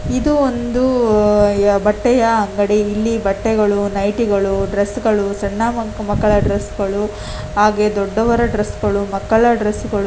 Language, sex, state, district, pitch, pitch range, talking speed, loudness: Kannada, female, Karnataka, Dakshina Kannada, 210 Hz, 205-225 Hz, 125 wpm, -16 LUFS